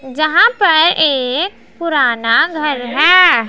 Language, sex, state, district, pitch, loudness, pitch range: Hindi, female, Punjab, Pathankot, 305 Hz, -12 LUFS, 260-340 Hz